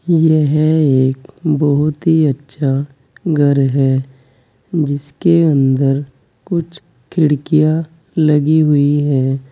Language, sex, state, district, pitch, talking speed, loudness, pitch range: Hindi, male, Uttar Pradesh, Saharanpur, 145 Hz, 90 wpm, -15 LUFS, 135-155 Hz